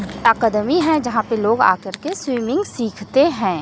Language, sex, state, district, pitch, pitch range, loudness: Hindi, female, Chhattisgarh, Raipur, 230 Hz, 210-285 Hz, -18 LUFS